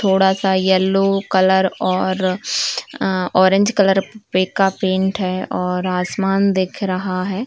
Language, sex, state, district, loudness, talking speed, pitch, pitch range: Hindi, female, Uttar Pradesh, Varanasi, -17 LUFS, 120 wpm, 190 Hz, 185-195 Hz